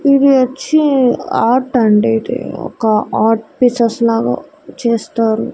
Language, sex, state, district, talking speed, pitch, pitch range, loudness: Telugu, female, Andhra Pradesh, Annamaya, 110 wpm, 240 Hz, 225-260 Hz, -14 LUFS